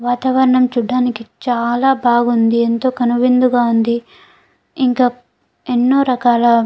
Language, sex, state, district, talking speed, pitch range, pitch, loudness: Telugu, female, Andhra Pradesh, Guntur, 100 wpm, 235-255 Hz, 245 Hz, -15 LUFS